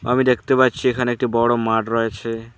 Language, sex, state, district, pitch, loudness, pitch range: Bengali, male, West Bengal, Alipurduar, 120 Hz, -19 LUFS, 115-125 Hz